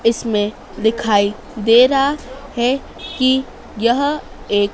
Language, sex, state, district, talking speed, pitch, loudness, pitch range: Hindi, female, Madhya Pradesh, Dhar, 100 wpm, 235 Hz, -17 LUFS, 215-265 Hz